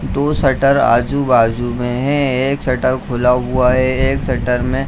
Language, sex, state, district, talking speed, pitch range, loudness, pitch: Hindi, male, Bihar, Jamui, 160 wpm, 125-135 Hz, -15 LUFS, 130 Hz